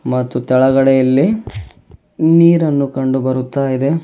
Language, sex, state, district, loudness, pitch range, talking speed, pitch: Kannada, male, Karnataka, Bidar, -14 LUFS, 130-140 Hz, 105 wpm, 130 Hz